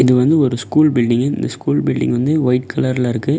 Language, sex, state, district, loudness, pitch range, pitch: Tamil, male, Tamil Nadu, Namakkal, -16 LUFS, 120-140 Hz, 125 Hz